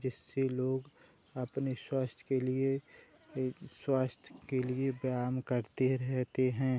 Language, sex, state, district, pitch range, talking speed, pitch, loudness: Hindi, male, Uttar Pradesh, Hamirpur, 130-135 Hz, 125 wpm, 130 Hz, -35 LUFS